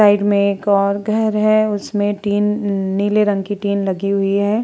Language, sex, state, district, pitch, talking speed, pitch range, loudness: Hindi, female, Uttar Pradesh, Muzaffarnagar, 205 Hz, 195 wpm, 200-210 Hz, -17 LUFS